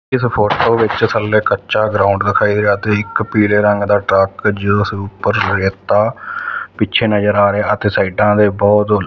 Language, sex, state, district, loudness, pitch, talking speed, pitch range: Punjabi, male, Punjab, Fazilka, -14 LUFS, 105 Hz, 170 wpm, 100-105 Hz